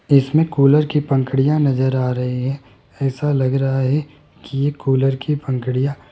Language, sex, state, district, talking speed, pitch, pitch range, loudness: Hindi, male, Rajasthan, Jaipur, 165 wpm, 135 Hz, 130-145 Hz, -18 LUFS